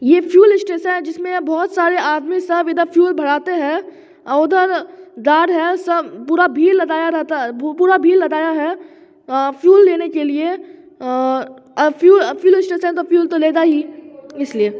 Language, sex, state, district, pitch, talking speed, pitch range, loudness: Hindi, male, Bihar, Muzaffarpur, 340 Hz, 175 wpm, 305-360 Hz, -15 LUFS